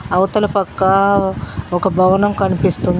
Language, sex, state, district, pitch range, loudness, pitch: Telugu, female, Telangana, Mahabubabad, 185-200 Hz, -15 LUFS, 190 Hz